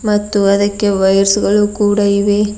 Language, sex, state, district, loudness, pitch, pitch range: Kannada, female, Karnataka, Bidar, -13 LUFS, 205 Hz, 200-205 Hz